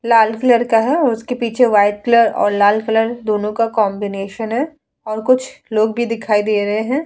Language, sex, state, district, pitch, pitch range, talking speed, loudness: Hindi, female, Bihar, Vaishali, 225 Hz, 210-240 Hz, 205 wpm, -16 LUFS